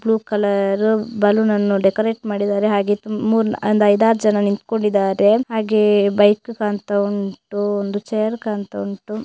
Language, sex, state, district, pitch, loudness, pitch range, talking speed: Kannada, female, Karnataka, Dakshina Kannada, 210 Hz, -18 LUFS, 205-220 Hz, 145 wpm